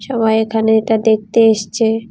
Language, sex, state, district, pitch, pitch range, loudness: Bengali, female, Tripura, West Tripura, 220 Hz, 220-225 Hz, -14 LUFS